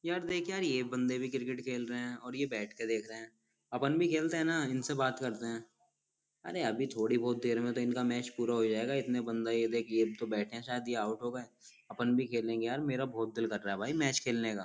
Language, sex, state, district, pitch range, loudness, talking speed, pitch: Hindi, male, Uttar Pradesh, Jyotiba Phule Nagar, 115-130 Hz, -34 LUFS, 260 wpm, 120 Hz